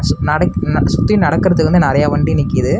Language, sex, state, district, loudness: Tamil, male, Tamil Nadu, Namakkal, -14 LUFS